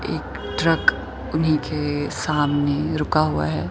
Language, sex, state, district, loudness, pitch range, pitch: Hindi, female, Himachal Pradesh, Shimla, -22 LUFS, 145-155 Hz, 150 Hz